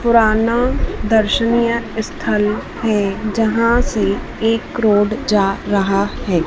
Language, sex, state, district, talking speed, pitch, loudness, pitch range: Hindi, female, Madhya Pradesh, Dhar, 100 wpm, 220 Hz, -17 LUFS, 205-230 Hz